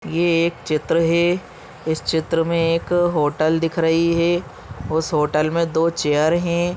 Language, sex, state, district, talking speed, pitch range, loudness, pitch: Hindi, male, Chhattisgarh, Bastar, 160 wpm, 160-170 Hz, -19 LUFS, 165 Hz